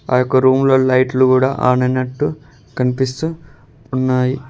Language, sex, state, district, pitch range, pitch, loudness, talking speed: Telugu, male, Telangana, Mahabubabad, 130-135 Hz, 130 Hz, -16 LUFS, 135 wpm